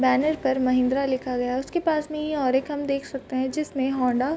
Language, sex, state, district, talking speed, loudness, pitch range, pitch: Hindi, female, Bihar, Vaishali, 260 wpm, -25 LUFS, 255-295 Hz, 270 Hz